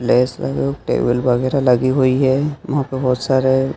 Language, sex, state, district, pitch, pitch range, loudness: Hindi, male, Madhya Pradesh, Dhar, 130 Hz, 125-135 Hz, -17 LUFS